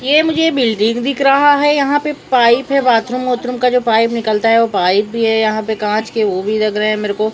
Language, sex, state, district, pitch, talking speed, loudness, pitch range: Hindi, female, Maharashtra, Mumbai Suburban, 230 Hz, 260 wpm, -14 LUFS, 215-270 Hz